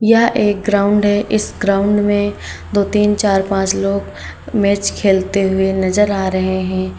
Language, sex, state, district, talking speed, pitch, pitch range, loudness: Hindi, female, Uttar Pradesh, Saharanpur, 165 wpm, 200 Hz, 190-205 Hz, -15 LUFS